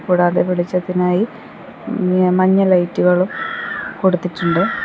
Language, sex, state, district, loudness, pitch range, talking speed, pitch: Malayalam, female, Kerala, Kollam, -17 LUFS, 180-190 Hz, 60 wpm, 180 Hz